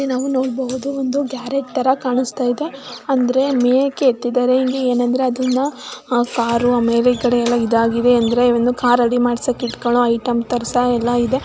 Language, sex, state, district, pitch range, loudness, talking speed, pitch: Kannada, male, Karnataka, Mysore, 240-260 Hz, -17 LUFS, 145 wpm, 250 Hz